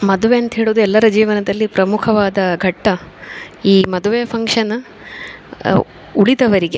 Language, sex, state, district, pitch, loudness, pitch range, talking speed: Kannada, female, Karnataka, Dakshina Kannada, 215 Hz, -15 LUFS, 195-225 Hz, 95 wpm